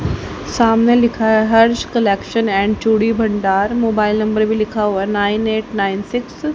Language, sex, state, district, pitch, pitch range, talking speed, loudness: Hindi, female, Haryana, Rohtak, 215 Hz, 205-225 Hz, 175 wpm, -16 LUFS